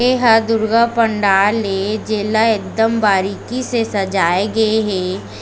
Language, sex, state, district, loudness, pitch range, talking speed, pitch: Chhattisgarhi, female, Chhattisgarh, Raigarh, -16 LUFS, 195-225 Hz, 120 wpm, 215 Hz